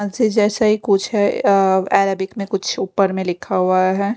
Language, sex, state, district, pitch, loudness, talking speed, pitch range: Hindi, female, Odisha, Khordha, 195 Hz, -17 LUFS, 185 wpm, 190-205 Hz